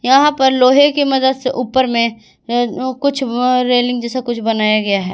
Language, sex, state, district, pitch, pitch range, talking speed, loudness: Hindi, female, Jharkhand, Garhwa, 250 Hz, 235-265 Hz, 175 wpm, -14 LUFS